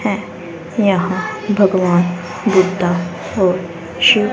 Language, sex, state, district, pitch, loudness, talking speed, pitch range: Hindi, female, Haryana, Rohtak, 185 Hz, -16 LUFS, 85 wpm, 175-200 Hz